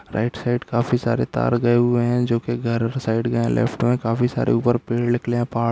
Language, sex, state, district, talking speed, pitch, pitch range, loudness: Hindi, male, Uttarakhand, Uttarkashi, 250 wpm, 120 Hz, 115-120 Hz, -21 LUFS